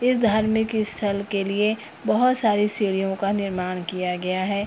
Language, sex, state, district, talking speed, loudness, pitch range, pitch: Hindi, female, Bihar, Purnia, 165 wpm, -22 LUFS, 190-215 Hz, 205 Hz